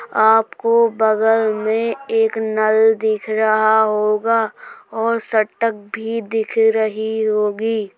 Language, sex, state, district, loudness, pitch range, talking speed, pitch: Hindi, female, Uttar Pradesh, Jalaun, -17 LUFS, 215-225 Hz, 115 wpm, 220 Hz